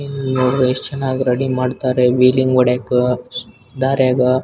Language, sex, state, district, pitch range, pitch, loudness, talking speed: Kannada, male, Karnataka, Bellary, 125-130 Hz, 130 Hz, -16 LUFS, 135 wpm